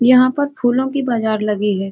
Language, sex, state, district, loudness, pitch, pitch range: Hindi, female, Uttar Pradesh, Hamirpur, -17 LUFS, 245 Hz, 210-260 Hz